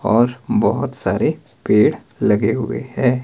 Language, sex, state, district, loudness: Hindi, male, Himachal Pradesh, Shimla, -18 LUFS